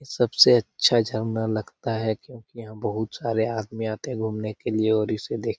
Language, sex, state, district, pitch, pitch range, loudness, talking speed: Hindi, male, Bihar, Lakhisarai, 110 Hz, 110-115 Hz, -24 LUFS, 205 wpm